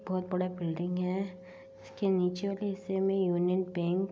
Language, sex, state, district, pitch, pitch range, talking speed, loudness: Hindi, female, Uttar Pradesh, Jyotiba Phule Nagar, 185 Hz, 180-190 Hz, 175 wpm, -32 LUFS